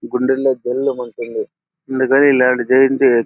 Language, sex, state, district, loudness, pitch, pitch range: Telugu, male, Andhra Pradesh, Anantapur, -16 LUFS, 130 Hz, 125-135 Hz